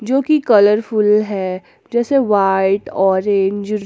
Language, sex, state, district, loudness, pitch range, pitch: Hindi, female, Jharkhand, Ranchi, -15 LUFS, 195-225 Hz, 205 Hz